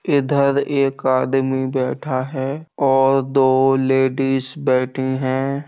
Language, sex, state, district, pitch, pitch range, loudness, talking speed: Bundeli, male, Uttar Pradesh, Jalaun, 135 Hz, 130-140 Hz, -18 LUFS, 105 wpm